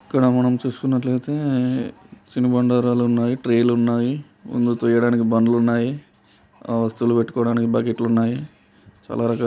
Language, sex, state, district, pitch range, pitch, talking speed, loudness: Telugu, male, Telangana, Karimnagar, 115-125 Hz, 120 Hz, 120 wpm, -20 LUFS